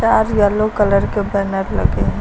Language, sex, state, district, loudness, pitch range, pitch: Hindi, female, Uttar Pradesh, Lucknow, -16 LUFS, 200-215 Hz, 205 Hz